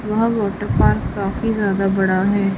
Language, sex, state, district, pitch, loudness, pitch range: Hindi, female, Chhattisgarh, Raipur, 200 Hz, -18 LUFS, 195-215 Hz